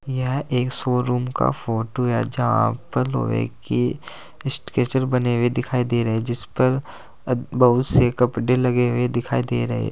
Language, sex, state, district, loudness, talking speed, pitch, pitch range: Hindi, male, Uttar Pradesh, Saharanpur, -22 LUFS, 155 wpm, 125 Hz, 120-125 Hz